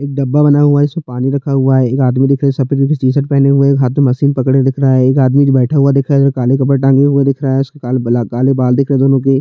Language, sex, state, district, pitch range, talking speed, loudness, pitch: Hindi, male, Chhattisgarh, Jashpur, 130-140 Hz, 350 wpm, -12 LUFS, 135 Hz